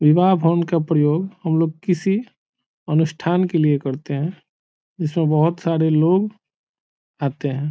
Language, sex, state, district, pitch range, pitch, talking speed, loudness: Hindi, male, Bihar, Saran, 155-180 Hz, 165 Hz, 150 wpm, -20 LUFS